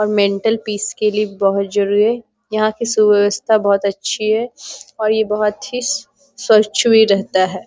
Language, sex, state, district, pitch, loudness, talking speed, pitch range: Hindi, female, Bihar, Bhagalpur, 215 Hz, -16 LUFS, 195 wpm, 205-225 Hz